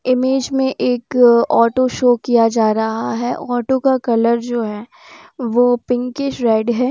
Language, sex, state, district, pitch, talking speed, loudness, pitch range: Hindi, female, Bihar, Sitamarhi, 245 Hz, 155 wpm, -16 LUFS, 235-255 Hz